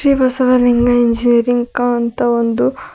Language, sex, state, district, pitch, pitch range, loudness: Kannada, female, Karnataka, Bidar, 245 Hz, 235-250 Hz, -14 LUFS